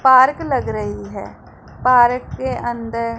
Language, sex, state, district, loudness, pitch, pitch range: Hindi, female, Punjab, Pathankot, -18 LUFS, 240 Hz, 230-255 Hz